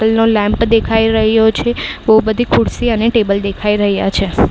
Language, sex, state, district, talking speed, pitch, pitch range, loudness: Gujarati, female, Maharashtra, Mumbai Suburban, 185 wpm, 220 Hz, 210-225 Hz, -13 LUFS